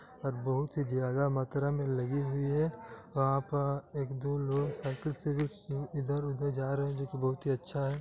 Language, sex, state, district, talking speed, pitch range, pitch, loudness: Hindi, male, Bihar, Gaya, 195 wpm, 135-145 Hz, 140 Hz, -34 LUFS